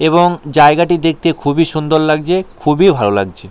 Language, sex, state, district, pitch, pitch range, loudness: Bengali, male, West Bengal, Paschim Medinipur, 155 Hz, 145-170 Hz, -13 LUFS